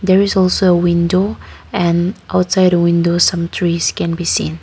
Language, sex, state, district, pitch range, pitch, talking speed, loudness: English, female, Nagaland, Kohima, 170-185 Hz, 175 Hz, 170 wpm, -14 LUFS